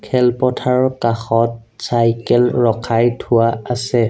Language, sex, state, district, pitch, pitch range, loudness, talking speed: Assamese, male, Assam, Sonitpur, 120 Hz, 115-125 Hz, -16 LUFS, 90 wpm